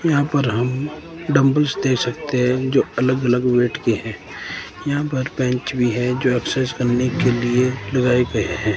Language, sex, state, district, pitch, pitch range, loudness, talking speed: Hindi, male, Himachal Pradesh, Shimla, 125 Hz, 125-135 Hz, -19 LUFS, 185 wpm